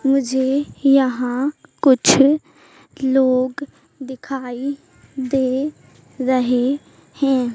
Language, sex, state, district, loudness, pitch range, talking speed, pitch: Hindi, female, Madhya Pradesh, Katni, -18 LUFS, 255-280 Hz, 65 wpm, 270 Hz